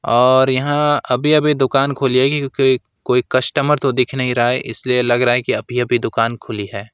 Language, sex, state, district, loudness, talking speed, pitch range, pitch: Hindi, male, West Bengal, Alipurduar, -16 LUFS, 225 wpm, 120-135 Hz, 130 Hz